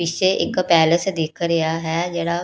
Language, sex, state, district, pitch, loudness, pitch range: Punjabi, female, Punjab, Pathankot, 170 Hz, -19 LUFS, 165-175 Hz